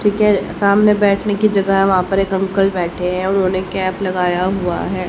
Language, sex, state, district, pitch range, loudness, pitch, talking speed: Hindi, female, Haryana, Jhajjar, 185-200 Hz, -16 LUFS, 195 Hz, 210 wpm